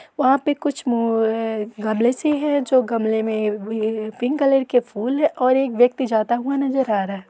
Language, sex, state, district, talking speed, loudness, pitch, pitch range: Hindi, female, Uttar Pradesh, Etah, 220 wpm, -20 LUFS, 245 Hz, 220-270 Hz